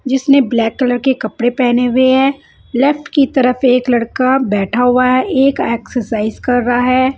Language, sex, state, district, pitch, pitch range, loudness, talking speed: Hindi, female, Punjab, Fazilka, 255 Hz, 245-265 Hz, -13 LUFS, 175 wpm